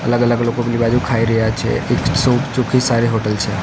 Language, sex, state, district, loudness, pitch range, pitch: Gujarati, male, Gujarat, Gandhinagar, -16 LUFS, 115-125 Hz, 120 Hz